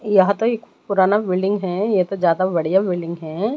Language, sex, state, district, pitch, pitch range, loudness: Hindi, female, Odisha, Malkangiri, 190 Hz, 180-205 Hz, -19 LUFS